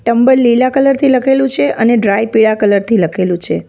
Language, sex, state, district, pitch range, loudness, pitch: Gujarati, female, Gujarat, Valsad, 205-260 Hz, -11 LUFS, 230 Hz